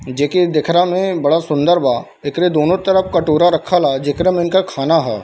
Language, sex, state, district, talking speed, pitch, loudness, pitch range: Hindi, male, Bihar, Darbhanga, 195 wpm, 170 Hz, -15 LUFS, 150-180 Hz